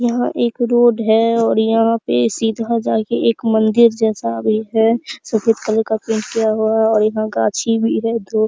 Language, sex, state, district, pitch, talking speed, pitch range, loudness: Hindi, female, Bihar, Araria, 225 Hz, 190 wpm, 220-230 Hz, -16 LUFS